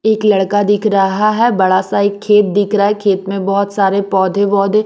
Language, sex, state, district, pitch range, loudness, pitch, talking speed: Hindi, female, Maharashtra, Mumbai Suburban, 195-210 Hz, -13 LUFS, 200 Hz, 210 wpm